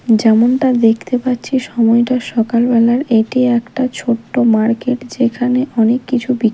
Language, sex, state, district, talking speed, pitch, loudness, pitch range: Bengali, female, Odisha, Malkangiri, 120 wpm, 240 Hz, -14 LUFS, 230-255 Hz